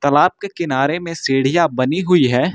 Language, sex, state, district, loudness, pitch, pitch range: Hindi, male, Uttar Pradesh, Lucknow, -17 LUFS, 160 Hz, 135-175 Hz